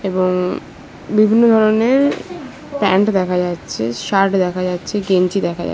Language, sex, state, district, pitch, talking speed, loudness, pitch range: Bengali, female, West Bengal, Paschim Medinipur, 190 Hz, 125 wpm, -16 LUFS, 180-215 Hz